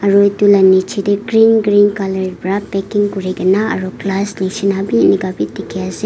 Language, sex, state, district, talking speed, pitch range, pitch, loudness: Nagamese, female, Nagaland, Kohima, 200 wpm, 190-205 Hz, 200 Hz, -14 LUFS